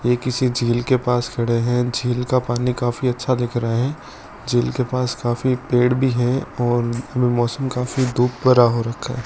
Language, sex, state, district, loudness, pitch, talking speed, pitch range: Hindi, male, Rajasthan, Bikaner, -20 LUFS, 125 Hz, 195 wpm, 120-125 Hz